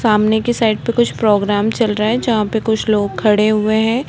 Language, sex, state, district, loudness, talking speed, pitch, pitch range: Hindi, female, Uttar Pradesh, Budaun, -15 LUFS, 235 wpm, 220 Hz, 210-225 Hz